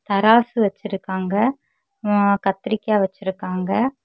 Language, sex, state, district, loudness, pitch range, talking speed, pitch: Tamil, female, Tamil Nadu, Kanyakumari, -20 LUFS, 195-235 Hz, 75 wpm, 205 Hz